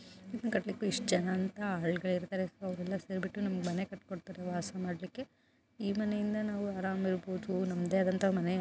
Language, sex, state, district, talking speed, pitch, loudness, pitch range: Kannada, female, Karnataka, Mysore, 140 wpm, 190 Hz, -35 LUFS, 185-200 Hz